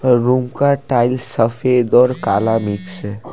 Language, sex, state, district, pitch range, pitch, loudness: Hindi, male, Assam, Kamrup Metropolitan, 110-130 Hz, 120 Hz, -16 LUFS